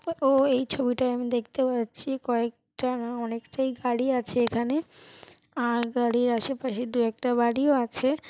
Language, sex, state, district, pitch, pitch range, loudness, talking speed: Bengali, female, West Bengal, Paschim Medinipur, 245 Hz, 235-265 Hz, -26 LUFS, 135 wpm